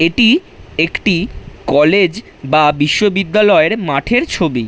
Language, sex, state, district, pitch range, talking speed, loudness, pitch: Bengali, male, West Bengal, Jhargram, 150-220 Hz, 90 wpm, -13 LUFS, 195 Hz